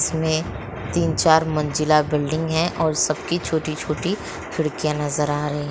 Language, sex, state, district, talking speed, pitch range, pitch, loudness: Hindi, female, Bihar, Muzaffarpur, 125 wpm, 150-160 Hz, 155 Hz, -22 LUFS